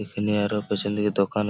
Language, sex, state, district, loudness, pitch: Bengali, male, West Bengal, Malda, -25 LUFS, 105 Hz